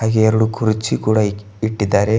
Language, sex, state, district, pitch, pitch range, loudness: Kannada, male, Karnataka, Bidar, 110 Hz, 105-110 Hz, -18 LUFS